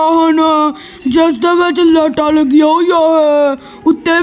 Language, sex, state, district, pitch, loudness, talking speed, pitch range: Punjabi, female, Punjab, Kapurthala, 320 Hz, -11 LUFS, 130 wpm, 305-330 Hz